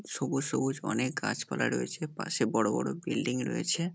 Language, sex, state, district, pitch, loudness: Bengali, male, West Bengal, North 24 Parganas, 110 Hz, -31 LUFS